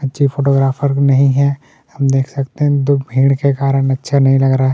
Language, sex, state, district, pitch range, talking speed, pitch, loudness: Hindi, male, Chhattisgarh, Kabirdham, 135-140 Hz, 215 wpm, 135 Hz, -14 LUFS